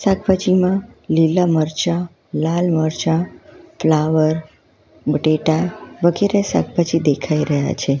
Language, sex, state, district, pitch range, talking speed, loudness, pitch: Gujarati, female, Gujarat, Valsad, 155-185 Hz, 90 wpm, -18 LUFS, 165 Hz